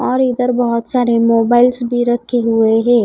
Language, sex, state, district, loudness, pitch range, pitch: Hindi, female, Odisha, Khordha, -14 LUFS, 230-245 Hz, 240 Hz